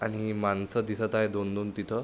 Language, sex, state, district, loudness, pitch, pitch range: Marathi, male, Maharashtra, Sindhudurg, -30 LUFS, 110 Hz, 100-110 Hz